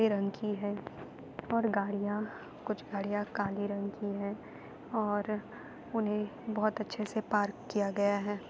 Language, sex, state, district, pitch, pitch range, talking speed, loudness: Hindi, female, Uttar Pradesh, Jalaun, 205 Hz, 205-215 Hz, 140 wpm, -34 LUFS